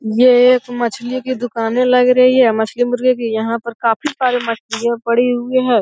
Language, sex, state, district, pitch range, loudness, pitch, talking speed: Hindi, male, Bihar, Jamui, 230-250 Hz, -15 LUFS, 245 Hz, 195 wpm